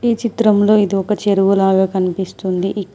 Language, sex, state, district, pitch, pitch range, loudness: Telugu, female, Telangana, Mahabubabad, 195 Hz, 190-210 Hz, -15 LUFS